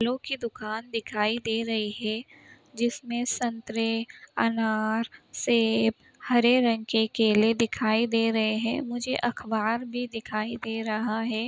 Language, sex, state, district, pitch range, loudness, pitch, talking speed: Hindi, female, Uttar Pradesh, Budaun, 220-240 Hz, -27 LUFS, 225 Hz, 135 wpm